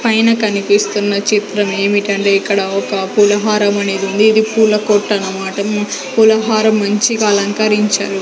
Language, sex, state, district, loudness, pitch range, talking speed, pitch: Telugu, female, Andhra Pradesh, Sri Satya Sai, -13 LUFS, 200-215 Hz, 110 wpm, 205 Hz